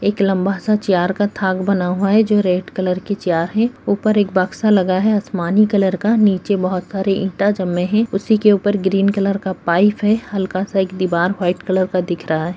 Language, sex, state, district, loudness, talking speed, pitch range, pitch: Hindi, female, Bihar, Jamui, -17 LUFS, 225 wpm, 185-205 Hz, 195 Hz